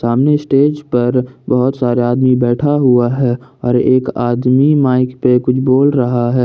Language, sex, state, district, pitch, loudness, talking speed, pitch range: Hindi, male, Jharkhand, Ranchi, 125 Hz, -13 LUFS, 165 wpm, 120-135 Hz